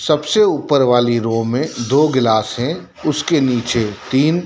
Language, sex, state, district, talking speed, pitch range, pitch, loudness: Hindi, male, Madhya Pradesh, Dhar, 150 wpm, 120-150 Hz, 130 Hz, -16 LUFS